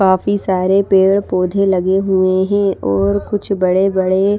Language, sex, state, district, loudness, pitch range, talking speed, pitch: Hindi, female, Himachal Pradesh, Shimla, -15 LUFS, 185-200 Hz, 125 wpm, 190 Hz